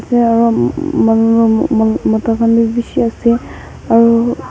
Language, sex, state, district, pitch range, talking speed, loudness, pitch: Nagamese, female, Nagaland, Kohima, 225-235 Hz, 65 wpm, -13 LUFS, 230 Hz